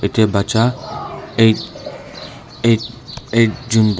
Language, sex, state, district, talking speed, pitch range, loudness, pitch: Nagamese, male, Nagaland, Dimapur, 90 wpm, 110-120 Hz, -17 LUFS, 115 Hz